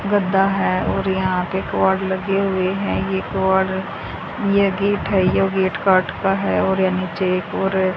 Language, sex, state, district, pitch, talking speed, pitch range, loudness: Hindi, female, Haryana, Charkhi Dadri, 190 Hz, 190 wpm, 185-195 Hz, -19 LUFS